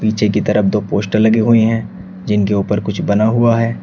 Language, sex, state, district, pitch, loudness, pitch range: Hindi, male, Uttar Pradesh, Shamli, 110 Hz, -15 LUFS, 105-115 Hz